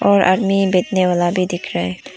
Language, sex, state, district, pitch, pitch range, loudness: Hindi, female, Arunachal Pradesh, Lower Dibang Valley, 180 Hz, 175-190 Hz, -17 LUFS